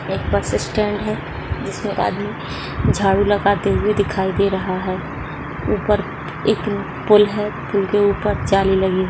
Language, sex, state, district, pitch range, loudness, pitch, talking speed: Hindi, female, Rajasthan, Churu, 185-205 Hz, -19 LUFS, 195 Hz, 160 wpm